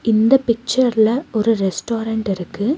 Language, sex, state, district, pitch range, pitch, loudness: Tamil, female, Tamil Nadu, Nilgiris, 215-245 Hz, 225 Hz, -18 LUFS